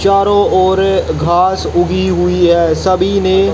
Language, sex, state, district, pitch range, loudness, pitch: Hindi, female, Haryana, Jhajjar, 175-190 Hz, -12 LUFS, 185 Hz